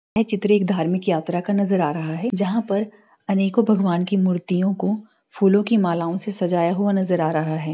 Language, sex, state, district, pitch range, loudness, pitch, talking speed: Hindi, female, Bihar, Jahanabad, 175-205 Hz, -21 LUFS, 195 Hz, 210 wpm